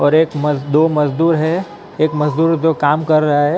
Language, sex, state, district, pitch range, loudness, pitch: Hindi, male, Maharashtra, Mumbai Suburban, 150-160 Hz, -15 LUFS, 155 Hz